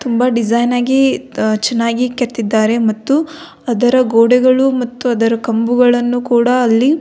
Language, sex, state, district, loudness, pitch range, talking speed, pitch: Kannada, female, Karnataka, Belgaum, -13 LUFS, 230-255 Hz, 120 wpm, 245 Hz